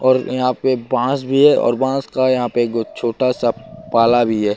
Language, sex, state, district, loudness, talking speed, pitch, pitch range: Hindi, male, Bihar, Katihar, -17 LUFS, 225 wpm, 125 Hz, 120-130 Hz